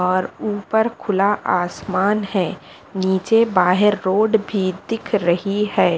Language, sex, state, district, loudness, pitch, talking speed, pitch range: Hindi, female, Punjab, Fazilka, -19 LUFS, 195 Hz, 120 wpm, 185-210 Hz